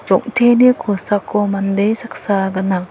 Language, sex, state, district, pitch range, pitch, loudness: Garo, female, Meghalaya, West Garo Hills, 195-235 Hz, 205 Hz, -16 LUFS